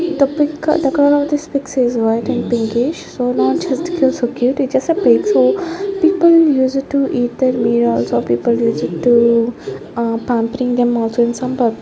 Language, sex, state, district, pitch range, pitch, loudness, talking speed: English, female, Punjab, Fazilka, 235-285 Hz, 250 Hz, -15 LUFS, 195 wpm